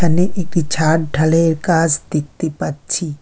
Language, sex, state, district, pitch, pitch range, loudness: Bengali, female, West Bengal, Alipurduar, 160 Hz, 155-170 Hz, -17 LUFS